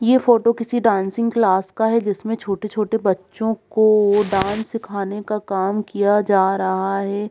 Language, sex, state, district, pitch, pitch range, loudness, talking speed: Hindi, female, Bihar, Jamui, 210 Hz, 195-225 Hz, -19 LUFS, 165 wpm